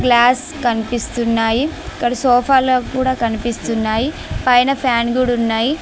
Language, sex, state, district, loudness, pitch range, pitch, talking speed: Telugu, female, Telangana, Mahabubabad, -16 LUFS, 230-260 Hz, 245 Hz, 95 wpm